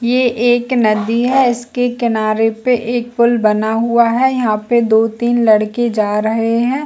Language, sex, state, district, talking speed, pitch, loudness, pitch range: Hindi, female, Chhattisgarh, Bilaspur, 175 wpm, 235 Hz, -14 LUFS, 220-245 Hz